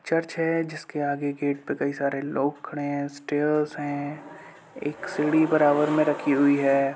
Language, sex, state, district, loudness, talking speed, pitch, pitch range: Hindi, male, Uttar Pradesh, Budaun, -25 LUFS, 170 wpm, 145 Hz, 145-155 Hz